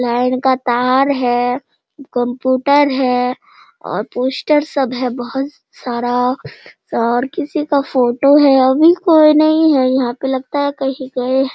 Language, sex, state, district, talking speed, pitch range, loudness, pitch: Hindi, female, Bihar, Sitamarhi, 150 wpm, 250-285 Hz, -15 LUFS, 260 Hz